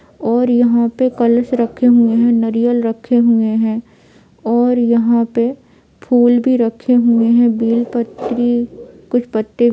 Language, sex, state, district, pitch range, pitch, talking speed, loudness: Hindi, female, Jharkhand, Sahebganj, 230-240 Hz, 235 Hz, 140 wpm, -14 LUFS